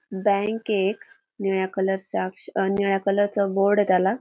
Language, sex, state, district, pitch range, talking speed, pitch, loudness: Marathi, female, Maharashtra, Aurangabad, 195-205 Hz, 170 wpm, 200 Hz, -23 LUFS